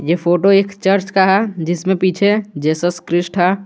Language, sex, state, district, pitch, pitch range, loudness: Hindi, male, Jharkhand, Garhwa, 190 Hz, 175-195 Hz, -15 LUFS